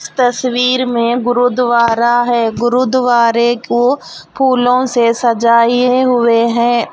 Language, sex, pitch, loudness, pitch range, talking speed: Hindi, female, 240 Hz, -12 LUFS, 235-250 Hz, 105 wpm